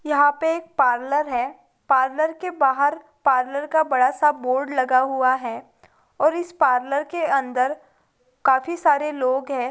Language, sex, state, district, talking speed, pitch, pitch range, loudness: Hindi, female, Andhra Pradesh, Anantapur, 155 wpm, 280 Hz, 255-305 Hz, -21 LUFS